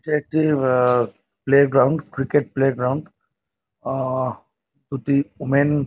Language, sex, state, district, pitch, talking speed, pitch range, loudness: Bengali, male, West Bengal, North 24 Parganas, 135 Hz, 100 wpm, 130-145 Hz, -20 LUFS